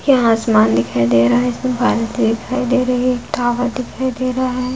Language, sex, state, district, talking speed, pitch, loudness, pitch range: Hindi, female, Bihar, Jamui, 225 wpm, 245 Hz, -16 LUFS, 225-255 Hz